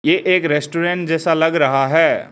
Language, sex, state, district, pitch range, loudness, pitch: Hindi, male, Arunachal Pradesh, Lower Dibang Valley, 150-175 Hz, -16 LUFS, 165 Hz